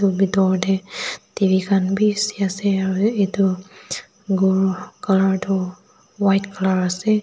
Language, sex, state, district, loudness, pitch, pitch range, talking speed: Nagamese, female, Nagaland, Dimapur, -20 LUFS, 195 Hz, 190-200 Hz, 125 wpm